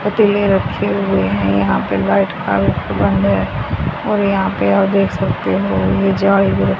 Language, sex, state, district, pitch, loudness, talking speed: Hindi, female, Haryana, Rohtak, 100 Hz, -15 LUFS, 175 wpm